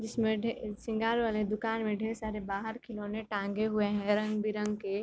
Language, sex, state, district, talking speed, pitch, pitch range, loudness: Hindi, female, Uttar Pradesh, Varanasi, 190 wpm, 215 Hz, 210-225 Hz, -33 LUFS